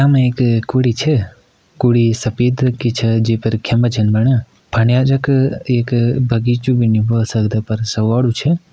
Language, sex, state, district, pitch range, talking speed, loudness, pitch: Kumaoni, male, Uttarakhand, Uttarkashi, 115-130 Hz, 165 wpm, -15 LUFS, 120 Hz